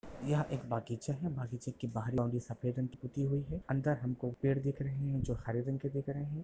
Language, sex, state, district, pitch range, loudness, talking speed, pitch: Hindi, male, Bihar, Lakhisarai, 125-140 Hz, -37 LUFS, 240 wpm, 135 Hz